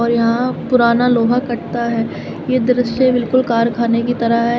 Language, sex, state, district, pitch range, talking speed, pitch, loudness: Hindi, female, Uttar Pradesh, Shamli, 235-250 Hz, 170 wpm, 235 Hz, -16 LUFS